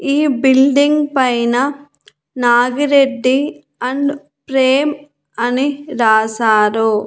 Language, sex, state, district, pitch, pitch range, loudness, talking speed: Telugu, female, Andhra Pradesh, Annamaya, 265 Hz, 240-285 Hz, -14 LUFS, 70 wpm